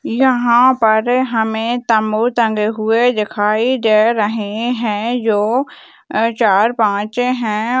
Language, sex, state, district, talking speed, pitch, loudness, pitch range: Hindi, female, Uttarakhand, Uttarkashi, 105 wpm, 225 Hz, -15 LUFS, 215-245 Hz